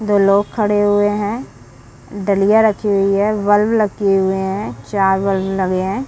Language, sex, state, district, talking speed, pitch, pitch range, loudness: Hindi, female, Bihar, Saran, 170 wpm, 200 Hz, 190-210 Hz, -16 LUFS